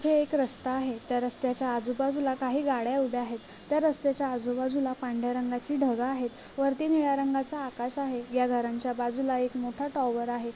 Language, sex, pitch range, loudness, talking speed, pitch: Marathi, female, 245-275 Hz, -29 LUFS, 180 wpm, 255 Hz